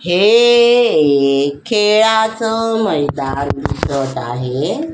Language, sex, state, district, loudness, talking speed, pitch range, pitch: Marathi, female, Maharashtra, Solapur, -14 LUFS, 75 wpm, 140-225 Hz, 160 Hz